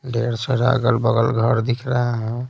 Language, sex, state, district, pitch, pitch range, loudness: Hindi, male, Bihar, Patna, 120 Hz, 115-125 Hz, -20 LUFS